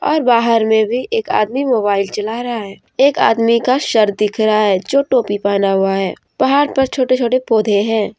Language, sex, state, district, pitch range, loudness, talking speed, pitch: Hindi, female, Jharkhand, Deoghar, 210-255 Hz, -15 LUFS, 205 wpm, 225 Hz